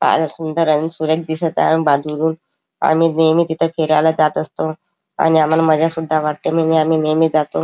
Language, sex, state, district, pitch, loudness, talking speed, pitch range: Marathi, male, Maharashtra, Chandrapur, 160 Hz, -16 LUFS, 165 wpm, 155-160 Hz